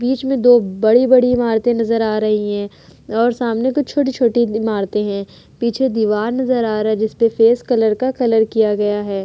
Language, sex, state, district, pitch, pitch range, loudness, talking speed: Hindi, female, Uttar Pradesh, Etah, 225 Hz, 215-245 Hz, -16 LUFS, 190 wpm